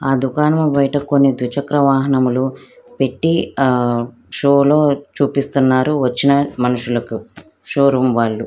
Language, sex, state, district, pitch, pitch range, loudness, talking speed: Telugu, female, Andhra Pradesh, Krishna, 135 Hz, 125-140 Hz, -16 LUFS, 130 wpm